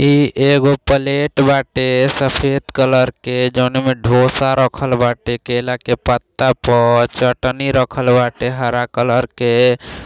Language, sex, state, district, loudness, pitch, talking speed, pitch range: Bhojpuri, male, Uttar Pradesh, Gorakhpur, -15 LUFS, 125 Hz, 130 wpm, 120-135 Hz